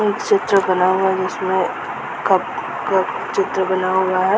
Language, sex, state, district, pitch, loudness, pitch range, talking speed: Hindi, female, Uttar Pradesh, Muzaffarnagar, 190 Hz, -18 LUFS, 185-195 Hz, 165 wpm